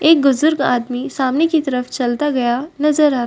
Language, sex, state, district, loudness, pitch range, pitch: Hindi, female, Uttar Pradesh, Varanasi, -17 LUFS, 250-300 Hz, 275 Hz